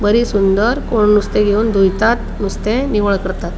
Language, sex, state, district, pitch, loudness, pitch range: Konkani, female, Goa, North and South Goa, 210 Hz, -15 LUFS, 195-225 Hz